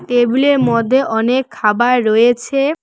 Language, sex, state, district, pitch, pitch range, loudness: Bengali, female, West Bengal, Cooch Behar, 245 Hz, 235-265 Hz, -14 LUFS